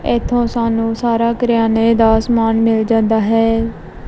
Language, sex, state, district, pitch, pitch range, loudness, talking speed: Punjabi, female, Punjab, Kapurthala, 225 Hz, 225-235 Hz, -15 LUFS, 130 wpm